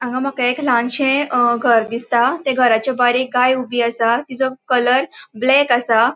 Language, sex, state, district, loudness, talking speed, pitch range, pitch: Konkani, female, Goa, North and South Goa, -16 LUFS, 175 wpm, 240-265 Hz, 250 Hz